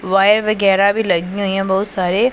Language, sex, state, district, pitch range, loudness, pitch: Hindi, female, Punjab, Pathankot, 190-210 Hz, -15 LUFS, 195 Hz